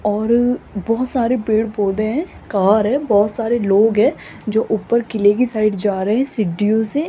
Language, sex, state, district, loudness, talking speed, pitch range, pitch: Hindi, female, Rajasthan, Jaipur, -17 LUFS, 185 wpm, 210-235 Hz, 220 Hz